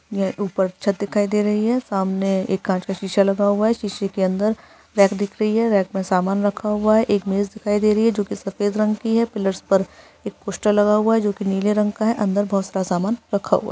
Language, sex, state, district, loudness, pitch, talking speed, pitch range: Hindi, female, Bihar, Jamui, -20 LUFS, 205 Hz, 260 wpm, 195-210 Hz